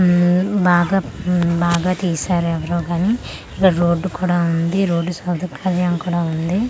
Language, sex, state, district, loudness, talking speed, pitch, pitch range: Telugu, female, Andhra Pradesh, Manyam, -18 LUFS, 145 wpm, 175 Hz, 170-185 Hz